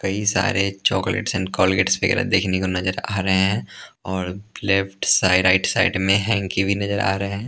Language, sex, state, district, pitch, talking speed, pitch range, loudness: Hindi, male, Punjab, Pathankot, 95 Hz, 200 wpm, 95-100 Hz, -20 LUFS